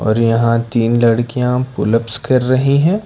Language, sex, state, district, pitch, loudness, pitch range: Hindi, male, Karnataka, Bangalore, 120 Hz, -15 LUFS, 115-130 Hz